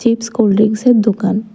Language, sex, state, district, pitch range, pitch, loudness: Bengali, female, Tripura, West Tripura, 210-230 Hz, 220 Hz, -13 LUFS